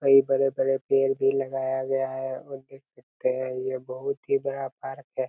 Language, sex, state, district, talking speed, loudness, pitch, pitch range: Hindi, male, Chhattisgarh, Raigarh, 190 wpm, -27 LUFS, 135 Hz, 130-135 Hz